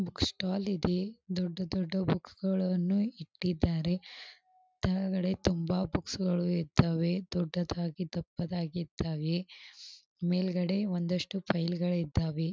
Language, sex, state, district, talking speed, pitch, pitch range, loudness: Kannada, female, Karnataka, Belgaum, 95 wpm, 180 Hz, 175-190 Hz, -32 LUFS